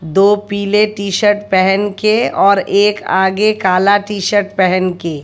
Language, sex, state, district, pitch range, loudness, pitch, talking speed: Hindi, female, Bihar, West Champaran, 190-205 Hz, -13 LUFS, 200 Hz, 160 wpm